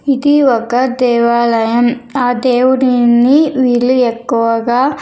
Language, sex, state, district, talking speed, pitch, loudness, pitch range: Telugu, female, Andhra Pradesh, Sri Satya Sai, 85 wpm, 245 Hz, -12 LUFS, 235-260 Hz